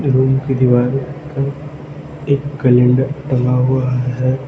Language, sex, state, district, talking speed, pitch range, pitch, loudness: Hindi, male, Arunachal Pradesh, Lower Dibang Valley, 120 wpm, 125-140 Hz, 130 Hz, -16 LUFS